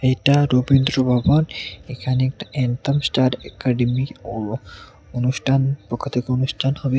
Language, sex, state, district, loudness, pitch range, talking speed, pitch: Bengali, male, Tripura, West Tripura, -20 LUFS, 125-135 Hz, 120 wpm, 130 Hz